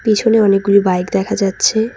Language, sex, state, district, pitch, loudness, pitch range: Bengali, female, West Bengal, Cooch Behar, 200 Hz, -14 LUFS, 195-220 Hz